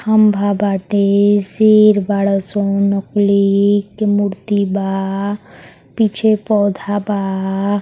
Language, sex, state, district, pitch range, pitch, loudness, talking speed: Hindi, female, Uttar Pradesh, Ghazipur, 200-205 Hz, 205 Hz, -15 LUFS, 90 wpm